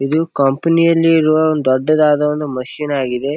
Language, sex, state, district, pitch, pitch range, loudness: Kannada, male, Karnataka, Bijapur, 150 Hz, 135-160 Hz, -15 LUFS